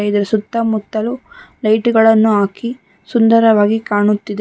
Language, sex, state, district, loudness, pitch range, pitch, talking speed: Kannada, female, Karnataka, Bangalore, -14 LUFS, 210-230 Hz, 220 Hz, 95 wpm